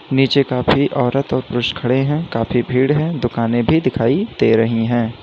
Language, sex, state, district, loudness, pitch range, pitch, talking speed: Hindi, male, Uttar Pradesh, Lalitpur, -17 LUFS, 115-135 Hz, 125 Hz, 185 wpm